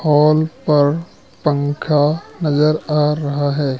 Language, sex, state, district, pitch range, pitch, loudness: Hindi, male, Madhya Pradesh, Katni, 145-155 Hz, 150 Hz, -17 LUFS